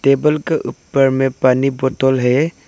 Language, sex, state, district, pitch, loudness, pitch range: Hindi, male, Arunachal Pradesh, Lower Dibang Valley, 135 Hz, -16 LUFS, 130-150 Hz